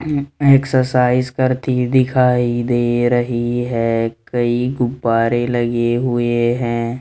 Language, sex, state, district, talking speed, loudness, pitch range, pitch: Hindi, male, Rajasthan, Jaipur, 95 wpm, -17 LUFS, 120-125 Hz, 120 Hz